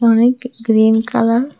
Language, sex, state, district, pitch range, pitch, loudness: Bengali, female, Tripura, West Tripura, 225-245 Hz, 230 Hz, -14 LUFS